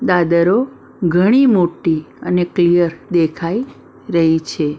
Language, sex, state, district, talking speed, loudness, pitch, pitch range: Gujarati, female, Maharashtra, Mumbai Suburban, 100 wpm, -15 LUFS, 175 Hz, 165-185 Hz